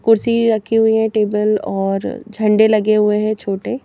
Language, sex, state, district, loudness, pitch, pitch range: Hindi, female, Madhya Pradesh, Bhopal, -16 LUFS, 215 Hz, 210-225 Hz